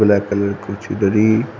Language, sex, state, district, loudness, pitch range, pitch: Hindi, male, Uttar Pradesh, Shamli, -18 LUFS, 100-110 Hz, 105 Hz